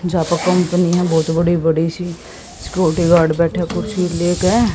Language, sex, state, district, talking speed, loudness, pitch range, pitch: Hindi, female, Haryana, Jhajjar, 190 wpm, -16 LUFS, 165-180 Hz, 175 Hz